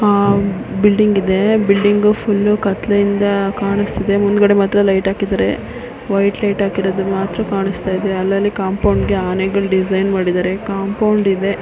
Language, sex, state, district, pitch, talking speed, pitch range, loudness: Kannada, female, Karnataka, Mysore, 200 Hz, 135 wpm, 195-205 Hz, -15 LUFS